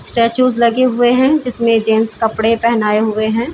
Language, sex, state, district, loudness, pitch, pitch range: Hindi, female, Chhattisgarh, Bilaspur, -13 LUFS, 230 Hz, 220-245 Hz